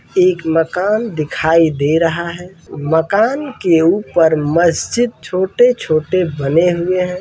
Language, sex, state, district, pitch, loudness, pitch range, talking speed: Hindi, male, Uttar Pradesh, Varanasi, 175 Hz, -15 LUFS, 160-185 Hz, 115 wpm